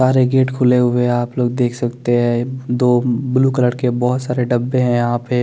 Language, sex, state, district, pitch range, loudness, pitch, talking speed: Hindi, male, Chandigarh, Chandigarh, 120-125 Hz, -16 LUFS, 125 Hz, 230 wpm